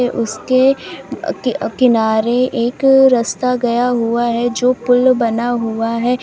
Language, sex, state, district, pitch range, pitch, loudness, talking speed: Hindi, female, Uttar Pradesh, Lalitpur, 235-255 Hz, 245 Hz, -15 LUFS, 145 wpm